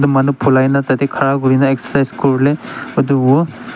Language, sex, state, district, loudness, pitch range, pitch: Nagamese, male, Nagaland, Dimapur, -14 LUFS, 130-140 Hz, 135 Hz